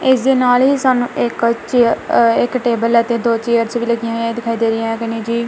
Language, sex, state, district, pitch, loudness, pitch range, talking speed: Punjabi, female, Punjab, Kapurthala, 235 Hz, -15 LUFS, 230-245 Hz, 205 wpm